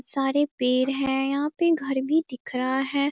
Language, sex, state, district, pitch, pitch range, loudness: Hindi, female, Bihar, Darbhanga, 270 Hz, 260-285 Hz, -24 LUFS